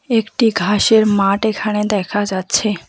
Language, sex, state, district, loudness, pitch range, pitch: Bengali, female, West Bengal, Alipurduar, -16 LUFS, 200-220 Hz, 210 Hz